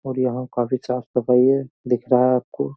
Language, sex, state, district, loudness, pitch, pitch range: Hindi, male, Uttar Pradesh, Jyotiba Phule Nagar, -20 LUFS, 125 Hz, 125-130 Hz